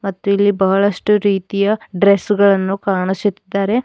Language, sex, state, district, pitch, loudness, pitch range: Kannada, female, Karnataka, Bidar, 200 Hz, -16 LUFS, 195-205 Hz